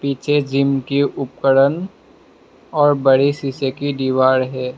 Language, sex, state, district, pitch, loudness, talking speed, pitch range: Hindi, male, Assam, Sonitpur, 140 Hz, -17 LUFS, 125 wpm, 130-140 Hz